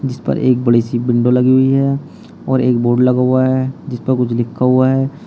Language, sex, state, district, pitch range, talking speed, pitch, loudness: Hindi, male, Uttar Pradesh, Shamli, 125-130 Hz, 240 wpm, 130 Hz, -14 LUFS